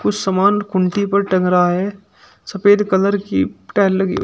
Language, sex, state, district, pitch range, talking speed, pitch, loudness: Hindi, male, Uttar Pradesh, Shamli, 185-200 Hz, 170 wpm, 195 Hz, -16 LUFS